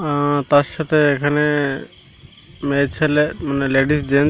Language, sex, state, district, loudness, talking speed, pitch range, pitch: Bengali, male, Odisha, Malkangiri, -18 LUFS, 125 wpm, 140-150 Hz, 145 Hz